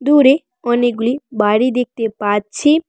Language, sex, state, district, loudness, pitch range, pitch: Bengali, female, West Bengal, Cooch Behar, -16 LUFS, 225-280 Hz, 245 Hz